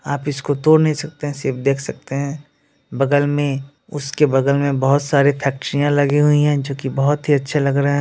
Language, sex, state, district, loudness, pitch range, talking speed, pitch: Hindi, male, Bihar, Muzaffarpur, -18 LUFS, 140-145 Hz, 215 wpm, 145 Hz